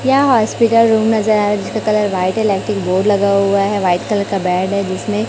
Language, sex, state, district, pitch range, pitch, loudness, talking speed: Hindi, male, Chhattisgarh, Raipur, 195-220 Hz, 205 Hz, -15 LUFS, 225 wpm